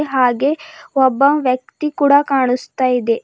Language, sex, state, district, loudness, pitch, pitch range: Kannada, female, Karnataka, Bidar, -16 LUFS, 270 Hz, 255-285 Hz